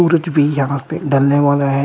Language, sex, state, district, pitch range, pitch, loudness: Hindi, male, Uttar Pradesh, Shamli, 140-160 Hz, 145 Hz, -15 LUFS